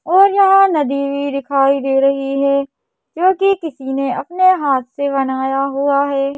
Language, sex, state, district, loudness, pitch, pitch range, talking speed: Hindi, female, Madhya Pradesh, Bhopal, -15 LUFS, 280 Hz, 275-330 Hz, 170 wpm